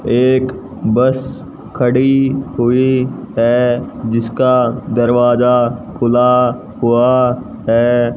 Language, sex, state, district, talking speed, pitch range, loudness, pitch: Hindi, male, Haryana, Jhajjar, 75 wpm, 120-130 Hz, -14 LUFS, 125 Hz